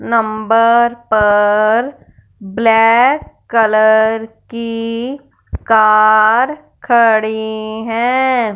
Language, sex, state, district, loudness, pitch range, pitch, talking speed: Hindi, female, Punjab, Fazilka, -13 LUFS, 215-235 Hz, 225 Hz, 55 wpm